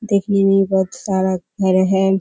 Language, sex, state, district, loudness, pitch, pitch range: Hindi, female, Bihar, Kishanganj, -17 LUFS, 190 Hz, 190-200 Hz